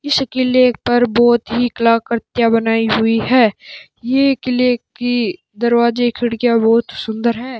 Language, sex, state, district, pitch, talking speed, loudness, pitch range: Hindi, male, Rajasthan, Bikaner, 240 Hz, 135 wpm, -15 LUFS, 230-250 Hz